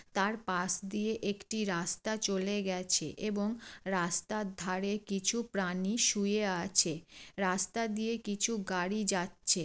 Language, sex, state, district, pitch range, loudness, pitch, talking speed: Bengali, female, West Bengal, Jalpaiguri, 185-215 Hz, -33 LUFS, 200 Hz, 120 wpm